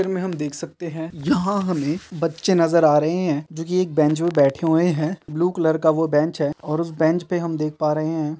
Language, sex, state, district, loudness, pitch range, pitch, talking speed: Hindi, male, Uttar Pradesh, Etah, -21 LUFS, 155-170 Hz, 160 Hz, 265 wpm